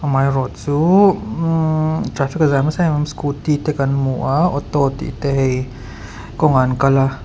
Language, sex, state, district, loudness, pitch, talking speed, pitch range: Mizo, male, Mizoram, Aizawl, -17 LUFS, 140 Hz, 180 wpm, 130-155 Hz